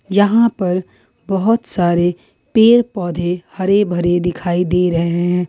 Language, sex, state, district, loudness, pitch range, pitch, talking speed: Hindi, female, Jharkhand, Ranchi, -16 LUFS, 175-205 Hz, 180 Hz, 130 wpm